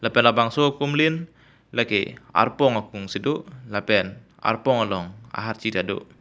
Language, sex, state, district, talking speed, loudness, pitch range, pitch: Karbi, male, Assam, Karbi Anglong, 135 wpm, -23 LUFS, 105-135 Hz, 115 Hz